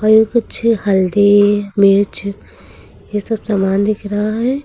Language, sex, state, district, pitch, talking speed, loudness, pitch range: Hindi, female, Uttar Pradesh, Lucknow, 205 Hz, 140 wpm, -14 LUFS, 195-215 Hz